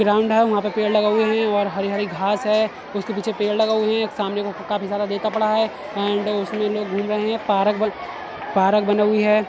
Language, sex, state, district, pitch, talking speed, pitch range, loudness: Hindi, male, Uttar Pradesh, Etah, 210 Hz, 230 wpm, 205-215 Hz, -21 LUFS